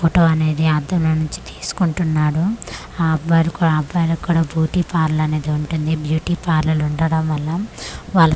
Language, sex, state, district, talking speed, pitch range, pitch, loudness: Telugu, female, Andhra Pradesh, Manyam, 130 wpm, 155-170 Hz, 160 Hz, -19 LUFS